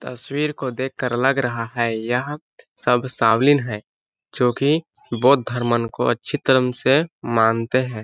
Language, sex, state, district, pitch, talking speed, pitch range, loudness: Hindi, male, Chhattisgarh, Balrampur, 125 Hz, 150 wpm, 120-135 Hz, -20 LUFS